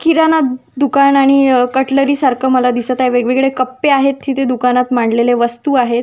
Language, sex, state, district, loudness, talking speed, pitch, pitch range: Marathi, female, Maharashtra, Nagpur, -13 LUFS, 150 wpm, 260 Hz, 250-275 Hz